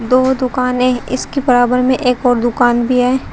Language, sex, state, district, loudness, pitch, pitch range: Hindi, female, Uttar Pradesh, Shamli, -14 LUFS, 250 Hz, 245-255 Hz